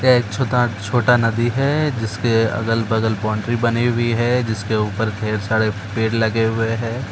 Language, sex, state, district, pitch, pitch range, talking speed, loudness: Hindi, male, Uttar Pradesh, Etah, 115 Hz, 110-120 Hz, 170 wpm, -19 LUFS